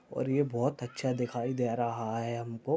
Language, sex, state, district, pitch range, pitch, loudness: Hindi, male, Chhattisgarh, Bastar, 115-130 Hz, 120 Hz, -33 LUFS